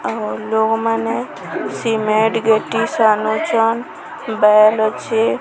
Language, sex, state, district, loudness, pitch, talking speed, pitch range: Odia, female, Odisha, Sambalpur, -16 LUFS, 220 Hz, 80 wpm, 215-225 Hz